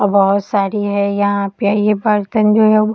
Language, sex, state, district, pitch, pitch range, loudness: Hindi, female, Bihar, Sitamarhi, 205 Hz, 200-215 Hz, -15 LUFS